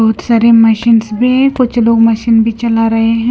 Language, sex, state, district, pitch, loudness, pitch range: Hindi, female, Punjab, Kapurthala, 230 Hz, -10 LUFS, 225-235 Hz